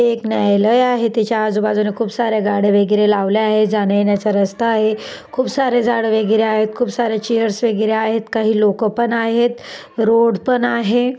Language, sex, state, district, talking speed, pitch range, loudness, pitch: Marathi, female, Maharashtra, Dhule, 170 wpm, 215-235 Hz, -16 LUFS, 220 Hz